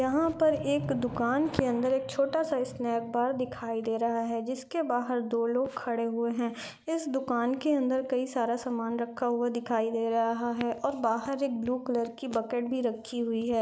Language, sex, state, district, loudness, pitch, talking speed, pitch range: Hindi, female, Bihar, Lakhisarai, -30 LUFS, 245 Hz, 205 wpm, 230-260 Hz